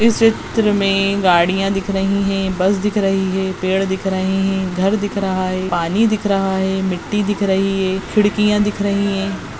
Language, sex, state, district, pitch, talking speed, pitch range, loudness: Hindi, female, Goa, North and South Goa, 195 Hz, 195 wpm, 190-205 Hz, -17 LUFS